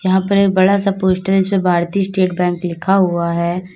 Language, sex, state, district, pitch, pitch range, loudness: Hindi, female, Uttar Pradesh, Lalitpur, 185 Hz, 180-195 Hz, -15 LUFS